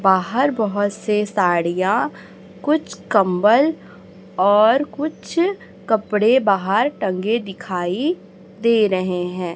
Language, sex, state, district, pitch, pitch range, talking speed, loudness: Hindi, female, Chhattisgarh, Raipur, 205 Hz, 185-235 Hz, 95 wpm, -19 LUFS